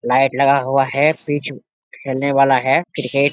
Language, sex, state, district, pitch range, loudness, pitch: Hindi, male, Bihar, Jamui, 135-140 Hz, -17 LUFS, 140 Hz